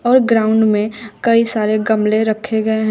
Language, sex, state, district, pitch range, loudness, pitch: Hindi, female, Uttar Pradesh, Shamli, 215-225 Hz, -15 LUFS, 220 Hz